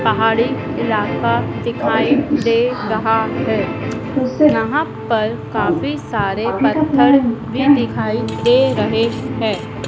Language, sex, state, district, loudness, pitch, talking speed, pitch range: Hindi, female, Madhya Pradesh, Dhar, -17 LUFS, 255 Hz, 95 wpm, 225-285 Hz